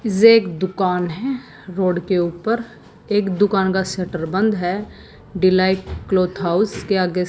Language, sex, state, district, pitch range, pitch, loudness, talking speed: Hindi, female, Haryana, Jhajjar, 180-205 Hz, 190 Hz, -19 LUFS, 140 wpm